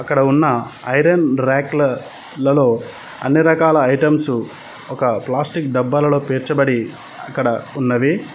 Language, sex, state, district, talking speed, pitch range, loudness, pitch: Telugu, male, Telangana, Mahabubabad, 100 wpm, 130-150 Hz, -17 LUFS, 140 Hz